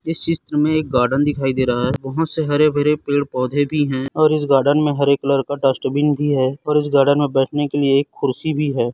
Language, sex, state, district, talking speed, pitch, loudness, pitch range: Hindi, male, Chhattisgarh, Raipur, 240 wpm, 145 Hz, -18 LUFS, 135-150 Hz